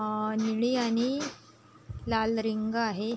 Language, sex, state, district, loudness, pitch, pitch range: Marathi, female, Maharashtra, Sindhudurg, -29 LUFS, 225 Hz, 220-235 Hz